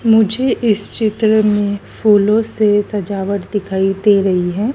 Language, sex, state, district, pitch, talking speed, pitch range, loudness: Hindi, female, Madhya Pradesh, Dhar, 205 Hz, 140 wpm, 200-220 Hz, -15 LUFS